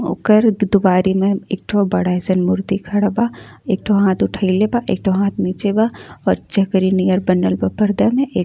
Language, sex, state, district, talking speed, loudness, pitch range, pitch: Bhojpuri, female, Uttar Pradesh, Ghazipur, 215 wpm, -17 LUFS, 185-210 Hz, 195 Hz